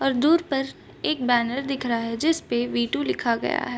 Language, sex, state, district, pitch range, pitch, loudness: Hindi, female, Bihar, Bhagalpur, 240-290 Hz, 260 Hz, -24 LUFS